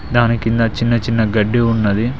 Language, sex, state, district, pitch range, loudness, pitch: Telugu, male, Telangana, Mahabubabad, 110-120 Hz, -16 LUFS, 115 Hz